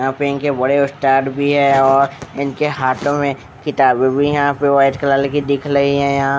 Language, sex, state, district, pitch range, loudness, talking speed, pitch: Hindi, male, Odisha, Khordha, 135-145 Hz, -15 LUFS, 215 wpm, 140 Hz